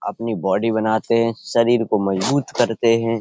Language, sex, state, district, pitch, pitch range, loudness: Hindi, male, Uttar Pradesh, Etah, 115 Hz, 110-115 Hz, -19 LUFS